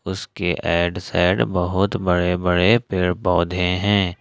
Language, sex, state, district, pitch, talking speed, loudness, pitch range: Hindi, male, Jharkhand, Ranchi, 90 Hz, 130 wpm, -20 LUFS, 90-95 Hz